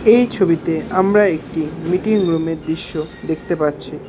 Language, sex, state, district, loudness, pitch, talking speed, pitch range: Bengali, male, West Bengal, Alipurduar, -18 LUFS, 165 Hz, 145 wpm, 160-190 Hz